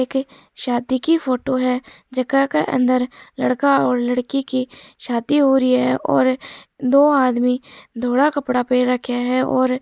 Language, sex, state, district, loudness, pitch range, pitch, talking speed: Marwari, female, Rajasthan, Churu, -19 LUFS, 250-275 Hz, 255 Hz, 160 wpm